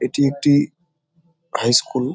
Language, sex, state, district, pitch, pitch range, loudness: Bengali, male, West Bengal, Jalpaiguri, 145 Hz, 135-165 Hz, -18 LUFS